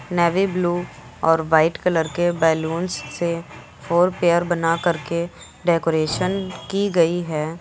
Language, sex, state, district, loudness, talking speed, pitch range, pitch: Hindi, female, Uttar Pradesh, Lucknow, -21 LUFS, 125 wpm, 165-175 Hz, 170 Hz